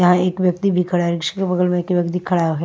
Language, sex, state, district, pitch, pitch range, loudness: Hindi, female, Himachal Pradesh, Shimla, 180 Hz, 175-180 Hz, -19 LUFS